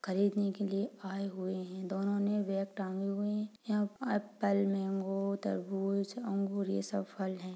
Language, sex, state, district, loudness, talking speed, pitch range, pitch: Hindi, female, Chhattisgarh, Bastar, -35 LUFS, 190 wpm, 195-205 Hz, 195 Hz